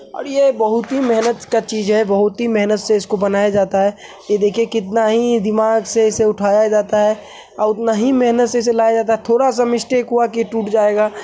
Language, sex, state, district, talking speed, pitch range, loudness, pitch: Hindi, male, Uttar Pradesh, Hamirpur, 220 wpm, 210-235 Hz, -16 LUFS, 220 Hz